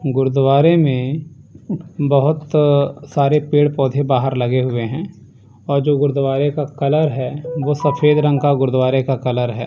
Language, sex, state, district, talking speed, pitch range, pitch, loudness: Hindi, male, Chandigarh, Chandigarh, 150 wpm, 130-150 Hz, 140 Hz, -17 LUFS